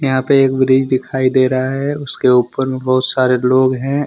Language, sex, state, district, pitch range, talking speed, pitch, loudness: Hindi, male, Jharkhand, Deoghar, 130-135 Hz, 205 wpm, 130 Hz, -14 LUFS